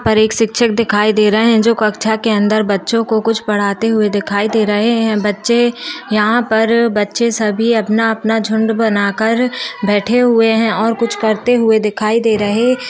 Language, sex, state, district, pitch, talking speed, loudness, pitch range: Hindi, female, Chhattisgarh, Rajnandgaon, 220 Hz, 185 wpm, -14 LUFS, 210-230 Hz